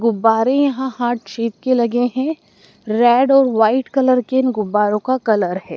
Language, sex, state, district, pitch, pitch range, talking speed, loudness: Hindi, female, Madhya Pradesh, Dhar, 240 Hz, 220-260 Hz, 175 wpm, -16 LUFS